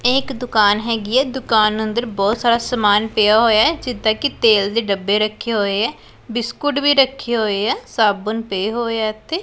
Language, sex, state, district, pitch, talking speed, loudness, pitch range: Punjabi, female, Punjab, Pathankot, 225 Hz, 195 wpm, -17 LUFS, 215-245 Hz